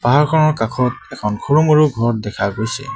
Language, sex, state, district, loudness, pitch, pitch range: Assamese, male, Assam, Sonitpur, -16 LUFS, 125 Hz, 110-150 Hz